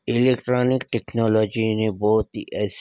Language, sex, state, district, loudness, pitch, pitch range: Hindi, female, Maharashtra, Nagpur, -22 LUFS, 110 Hz, 110-125 Hz